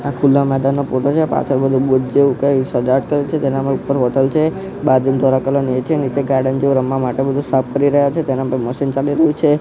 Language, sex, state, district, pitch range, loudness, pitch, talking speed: Gujarati, male, Gujarat, Gandhinagar, 130-140 Hz, -16 LUFS, 135 Hz, 245 wpm